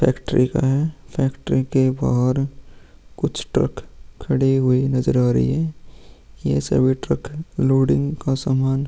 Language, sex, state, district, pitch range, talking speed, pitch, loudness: Hindi, male, Bihar, Vaishali, 130-140 Hz, 140 wpm, 135 Hz, -20 LUFS